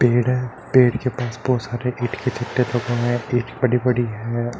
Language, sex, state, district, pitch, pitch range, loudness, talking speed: Hindi, male, Uttar Pradesh, Hamirpur, 120 Hz, 120-125 Hz, -21 LUFS, 210 wpm